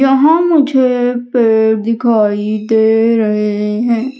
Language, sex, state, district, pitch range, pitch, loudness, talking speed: Hindi, female, Madhya Pradesh, Umaria, 220-255 Hz, 230 Hz, -12 LUFS, 100 wpm